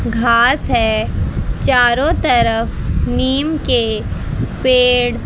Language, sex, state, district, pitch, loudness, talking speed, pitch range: Hindi, female, Haryana, Rohtak, 240 Hz, -15 LUFS, 90 wpm, 230-255 Hz